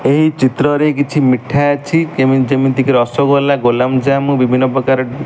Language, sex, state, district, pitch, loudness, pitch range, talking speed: Odia, male, Odisha, Malkangiri, 135 Hz, -13 LUFS, 130-145 Hz, 135 wpm